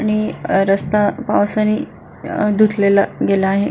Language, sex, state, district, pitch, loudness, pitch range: Marathi, female, Maharashtra, Solapur, 205 Hz, -16 LUFS, 195-215 Hz